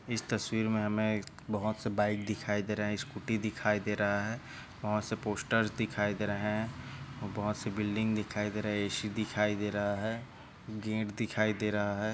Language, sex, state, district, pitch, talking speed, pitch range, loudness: Hindi, male, Maharashtra, Chandrapur, 105 Hz, 205 wpm, 105-110 Hz, -33 LUFS